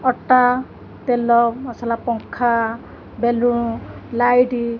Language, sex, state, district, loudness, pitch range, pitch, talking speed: Odia, female, Odisha, Khordha, -18 LUFS, 235-245 Hz, 240 Hz, 85 wpm